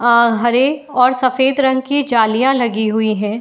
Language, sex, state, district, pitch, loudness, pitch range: Hindi, female, Uttar Pradesh, Etah, 250 Hz, -14 LUFS, 225-265 Hz